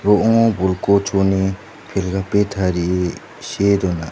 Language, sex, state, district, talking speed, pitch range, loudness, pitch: Garo, male, Meghalaya, West Garo Hills, 75 wpm, 95-105 Hz, -18 LUFS, 95 Hz